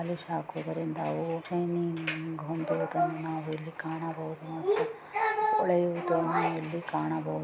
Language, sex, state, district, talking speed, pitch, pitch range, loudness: Kannada, female, Karnataka, Dakshina Kannada, 80 wpm, 165 Hz, 160-175 Hz, -31 LUFS